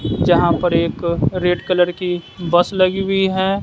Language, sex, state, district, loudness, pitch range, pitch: Hindi, male, Bihar, West Champaran, -17 LUFS, 175-190 Hz, 180 Hz